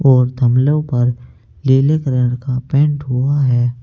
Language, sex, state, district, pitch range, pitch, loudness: Hindi, male, Uttar Pradesh, Saharanpur, 125-140 Hz, 130 Hz, -15 LUFS